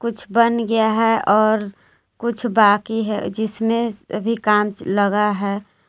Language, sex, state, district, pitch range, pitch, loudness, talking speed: Hindi, female, Jharkhand, Garhwa, 210-230 Hz, 220 Hz, -19 LUFS, 130 wpm